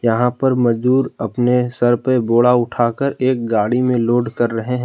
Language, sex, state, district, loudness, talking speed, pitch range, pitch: Hindi, male, Jharkhand, Palamu, -16 LUFS, 185 wpm, 115-125 Hz, 120 Hz